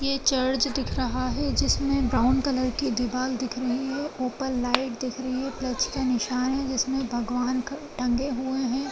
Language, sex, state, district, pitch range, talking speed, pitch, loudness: Hindi, female, Bihar, Madhepura, 250-270 Hz, 180 wpm, 260 Hz, -26 LUFS